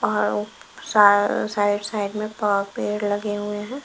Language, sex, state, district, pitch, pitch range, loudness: Hindi, female, Himachal Pradesh, Shimla, 205 Hz, 205-210 Hz, -22 LUFS